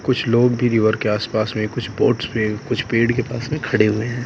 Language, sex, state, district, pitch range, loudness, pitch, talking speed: Hindi, male, Bihar, Purnia, 110-125 Hz, -19 LUFS, 115 Hz, 280 wpm